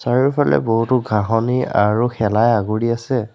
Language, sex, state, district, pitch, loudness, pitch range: Assamese, male, Assam, Sonitpur, 115 Hz, -17 LUFS, 110-125 Hz